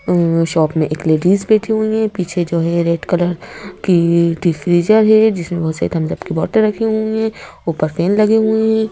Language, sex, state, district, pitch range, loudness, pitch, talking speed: Hindi, female, Madhya Pradesh, Bhopal, 165-220 Hz, -15 LUFS, 175 Hz, 235 wpm